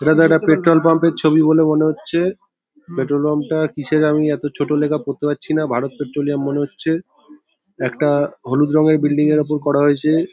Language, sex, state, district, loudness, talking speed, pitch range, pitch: Bengali, male, West Bengal, Paschim Medinipur, -17 LUFS, 190 wpm, 145-160 Hz, 150 Hz